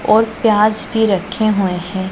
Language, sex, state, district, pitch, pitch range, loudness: Hindi, female, Punjab, Pathankot, 215 Hz, 195-220 Hz, -15 LUFS